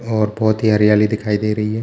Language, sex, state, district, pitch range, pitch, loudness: Hindi, male, Chhattisgarh, Bilaspur, 105-110 Hz, 105 Hz, -16 LUFS